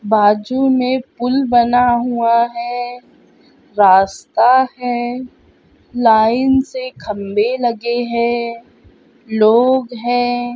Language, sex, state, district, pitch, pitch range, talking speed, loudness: Hindi, female, Karnataka, Raichur, 245 Hz, 230-255 Hz, 85 wpm, -15 LUFS